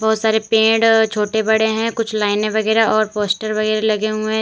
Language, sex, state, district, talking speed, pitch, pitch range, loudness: Hindi, female, Uttar Pradesh, Lalitpur, 205 wpm, 220 Hz, 215-220 Hz, -16 LUFS